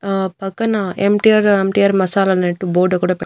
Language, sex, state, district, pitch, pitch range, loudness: Telugu, female, Andhra Pradesh, Annamaya, 195 Hz, 185-200 Hz, -15 LUFS